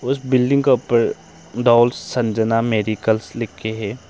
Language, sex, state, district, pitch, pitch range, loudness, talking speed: Hindi, male, Arunachal Pradesh, Longding, 120 Hz, 110-125 Hz, -18 LUFS, 145 wpm